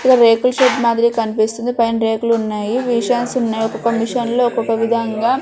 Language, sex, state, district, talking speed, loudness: Telugu, male, Andhra Pradesh, Sri Satya Sai, 175 wpm, -16 LUFS